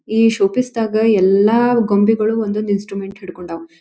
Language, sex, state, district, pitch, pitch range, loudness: Kannada, female, Karnataka, Dharwad, 210 Hz, 195-225 Hz, -15 LUFS